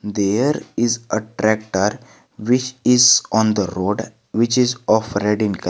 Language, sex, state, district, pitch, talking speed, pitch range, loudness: English, male, Jharkhand, Garhwa, 110 Hz, 155 wpm, 105-125 Hz, -18 LUFS